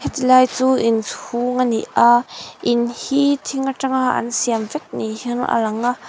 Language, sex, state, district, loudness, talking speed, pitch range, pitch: Mizo, female, Mizoram, Aizawl, -18 LUFS, 185 wpm, 235-260 Hz, 245 Hz